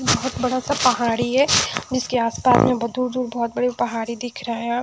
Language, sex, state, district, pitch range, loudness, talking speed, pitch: Hindi, female, Odisha, Sambalpur, 235-255 Hz, -20 LUFS, 225 wpm, 245 Hz